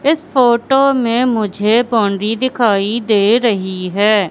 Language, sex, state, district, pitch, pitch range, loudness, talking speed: Hindi, female, Madhya Pradesh, Katni, 230 Hz, 205-245 Hz, -14 LUFS, 125 wpm